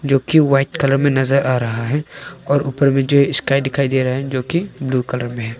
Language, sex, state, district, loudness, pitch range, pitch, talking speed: Hindi, male, Arunachal Pradesh, Longding, -17 LUFS, 130-140 Hz, 135 Hz, 245 wpm